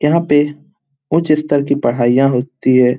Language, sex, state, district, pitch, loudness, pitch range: Hindi, male, Bihar, Lakhisarai, 140 Hz, -14 LUFS, 130-150 Hz